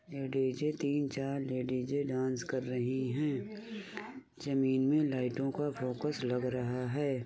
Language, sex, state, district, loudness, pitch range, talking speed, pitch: Hindi, male, Uttar Pradesh, Muzaffarnagar, -34 LUFS, 130-145 Hz, 125 wpm, 135 Hz